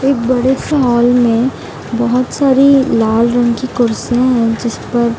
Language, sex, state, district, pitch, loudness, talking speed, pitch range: Hindi, female, Bihar, Gaya, 245 Hz, -13 LUFS, 175 wpm, 235-255 Hz